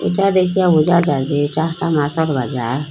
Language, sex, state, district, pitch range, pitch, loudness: Bengali, female, Assam, Hailakandi, 145-175 Hz, 155 Hz, -16 LUFS